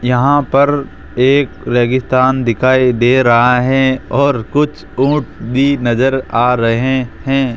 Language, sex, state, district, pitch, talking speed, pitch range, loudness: Hindi, male, Rajasthan, Jaipur, 130 Hz, 125 wpm, 120-135 Hz, -13 LUFS